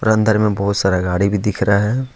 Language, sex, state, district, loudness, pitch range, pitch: Hindi, male, Jharkhand, Ranchi, -17 LUFS, 100-110 Hz, 105 Hz